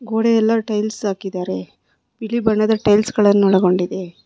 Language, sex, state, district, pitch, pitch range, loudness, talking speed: Kannada, female, Karnataka, Bangalore, 210 Hz, 190-220 Hz, -17 LUFS, 110 wpm